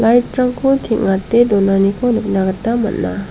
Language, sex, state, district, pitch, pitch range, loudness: Garo, female, Meghalaya, South Garo Hills, 225 Hz, 195-240 Hz, -15 LUFS